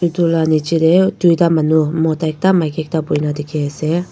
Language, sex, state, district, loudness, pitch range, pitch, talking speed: Nagamese, female, Nagaland, Dimapur, -15 LUFS, 155-170 Hz, 160 Hz, 190 wpm